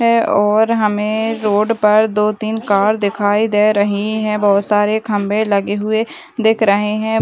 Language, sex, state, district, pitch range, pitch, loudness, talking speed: Hindi, female, Bihar, Muzaffarpur, 205-220 Hz, 210 Hz, -15 LUFS, 175 wpm